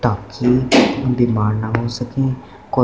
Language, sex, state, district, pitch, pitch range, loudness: Hindi, male, Punjab, Fazilka, 120 Hz, 110-130 Hz, -17 LUFS